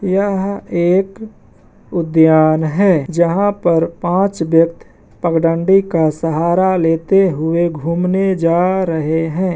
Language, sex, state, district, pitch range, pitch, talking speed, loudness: Hindi, male, Bihar, Madhepura, 165-190 Hz, 170 Hz, 105 wpm, -15 LUFS